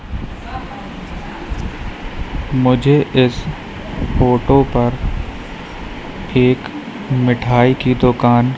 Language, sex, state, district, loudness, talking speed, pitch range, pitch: Hindi, female, Madhya Pradesh, Katni, -16 LUFS, 55 wpm, 120-130 Hz, 125 Hz